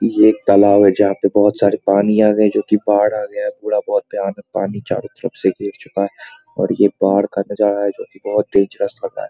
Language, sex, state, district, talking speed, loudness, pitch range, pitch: Hindi, male, Bihar, Muzaffarpur, 260 wpm, -16 LUFS, 100-110 Hz, 105 Hz